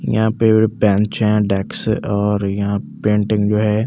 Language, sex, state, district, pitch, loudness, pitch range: Hindi, male, Delhi, New Delhi, 105 Hz, -17 LUFS, 100-110 Hz